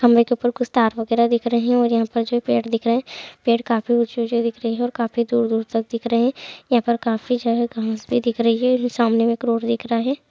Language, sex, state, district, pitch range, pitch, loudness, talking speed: Hindi, female, Chhattisgarh, Korba, 230-240 Hz, 235 Hz, -20 LUFS, 290 wpm